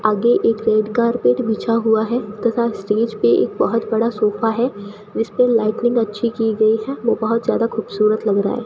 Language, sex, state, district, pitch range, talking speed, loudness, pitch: Hindi, female, Rajasthan, Bikaner, 215-235 Hz, 195 wpm, -18 LUFS, 225 Hz